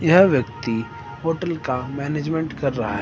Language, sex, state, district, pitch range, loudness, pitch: Hindi, female, Himachal Pradesh, Shimla, 115-160 Hz, -22 LUFS, 140 Hz